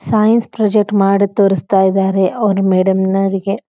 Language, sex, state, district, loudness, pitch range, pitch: Kannada, female, Karnataka, Dharwad, -14 LUFS, 190-210 Hz, 195 Hz